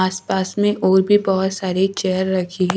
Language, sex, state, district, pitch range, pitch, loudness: Hindi, female, Haryana, Charkhi Dadri, 185-195 Hz, 190 Hz, -18 LUFS